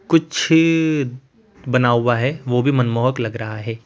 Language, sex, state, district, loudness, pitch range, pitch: Hindi, male, Rajasthan, Jaipur, -18 LUFS, 120-155 Hz, 125 Hz